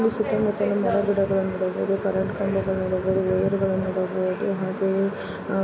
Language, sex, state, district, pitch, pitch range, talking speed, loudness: Kannada, female, Karnataka, Dharwad, 195 Hz, 190-195 Hz, 125 wpm, -24 LUFS